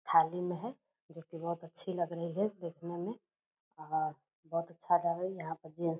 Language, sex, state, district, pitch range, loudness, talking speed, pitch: Hindi, female, Bihar, Purnia, 165-180 Hz, -36 LUFS, 190 wpm, 170 Hz